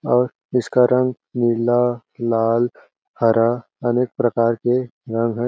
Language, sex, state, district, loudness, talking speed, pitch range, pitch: Hindi, male, Chhattisgarh, Balrampur, -19 LUFS, 120 wpm, 115-125 Hz, 120 Hz